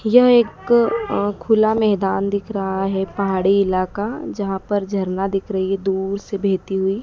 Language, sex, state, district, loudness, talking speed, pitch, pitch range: Hindi, female, Madhya Pradesh, Dhar, -19 LUFS, 170 wpm, 200 Hz, 195-215 Hz